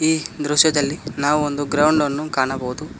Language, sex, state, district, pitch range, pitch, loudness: Kannada, male, Karnataka, Koppal, 145-155 Hz, 150 Hz, -19 LUFS